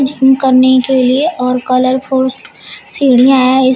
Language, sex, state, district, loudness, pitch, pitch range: Hindi, female, Uttar Pradesh, Shamli, -10 LUFS, 260 Hz, 255-265 Hz